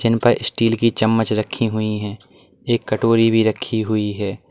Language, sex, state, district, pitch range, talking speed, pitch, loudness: Hindi, male, Uttar Pradesh, Lalitpur, 110-115 Hz, 185 wpm, 110 Hz, -18 LUFS